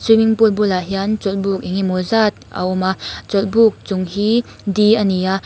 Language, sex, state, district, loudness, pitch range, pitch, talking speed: Mizo, female, Mizoram, Aizawl, -17 LUFS, 190-220 Hz, 200 Hz, 175 wpm